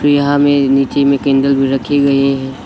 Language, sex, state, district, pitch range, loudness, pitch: Hindi, male, Arunachal Pradesh, Lower Dibang Valley, 135-145 Hz, -12 LUFS, 140 Hz